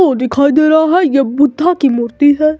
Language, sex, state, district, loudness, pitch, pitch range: Hindi, female, Himachal Pradesh, Shimla, -11 LUFS, 290 Hz, 270-310 Hz